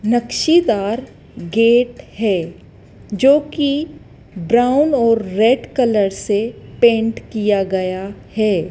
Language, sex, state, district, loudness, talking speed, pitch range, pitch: Hindi, female, Madhya Pradesh, Dhar, -17 LUFS, 90 wpm, 205-245 Hz, 225 Hz